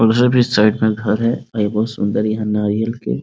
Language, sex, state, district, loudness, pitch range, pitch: Hindi, male, Bihar, Muzaffarpur, -17 LUFS, 105-115 Hz, 110 Hz